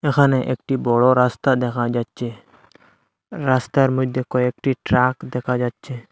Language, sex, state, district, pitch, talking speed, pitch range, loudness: Bengali, male, Assam, Hailakandi, 125 Hz, 115 wpm, 120-130 Hz, -20 LUFS